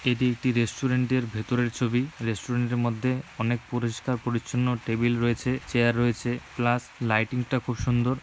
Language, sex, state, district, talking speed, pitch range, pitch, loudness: Bengali, male, West Bengal, Malda, 155 wpm, 120-125 Hz, 120 Hz, -27 LUFS